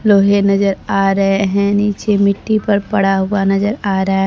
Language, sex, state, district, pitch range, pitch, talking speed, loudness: Hindi, female, Bihar, Kaimur, 195-205 Hz, 200 Hz, 195 wpm, -14 LUFS